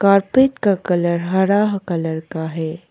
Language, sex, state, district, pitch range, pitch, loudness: Hindi, female, Arunachal Pradesh, Papum Pare, 165-200 Hz, 180 Hz, -18 LUFS